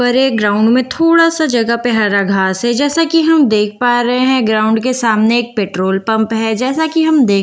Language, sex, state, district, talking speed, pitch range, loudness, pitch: Hindi, female, Bihar, Katihar, 260 wpm, 215-265 Hz, -13 LUFS, 240 Hz